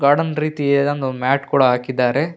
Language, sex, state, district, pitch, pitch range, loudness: Kannada, male, Karnataka, Bellary, 140 Hz, 130-145 Hz, -18 LUFS